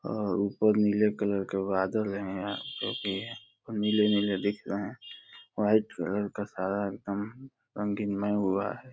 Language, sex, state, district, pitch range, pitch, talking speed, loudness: Hindi, male, Uttar Pradesh, Deoria, 100-105 Hz, 105 Hz, 150 wpm, -30 LUFS